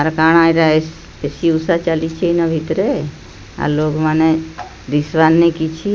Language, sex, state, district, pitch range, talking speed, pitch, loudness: Odia, female, Odisha, Sambalpur, 155-165 Hz, 130 wpm, 160 Hz, -15 LUFS